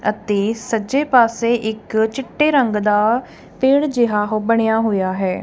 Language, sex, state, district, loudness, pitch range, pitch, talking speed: Punjabi, female, Punjab, Kapurthala, -17 LUFS, 210-245 Hz, 225 Hz, 145 wpm